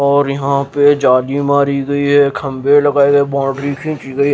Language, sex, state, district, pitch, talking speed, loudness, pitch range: Hindi, male, Haryana, Jhajjar, 140 Hz, 195 wpm, -13 LUFS, 140-145 Hz